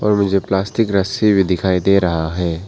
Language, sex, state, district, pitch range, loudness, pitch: Hindi, male, Arunachal Pradesh, Papum Pare, 90-100 Hz, -16 LUFS, 95 Hz